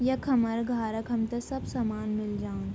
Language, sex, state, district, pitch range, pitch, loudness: Garhwali, female, Uttarakhand, Tehri Garhwal, 215-245 Hz, 230 Hz, -30 LUFS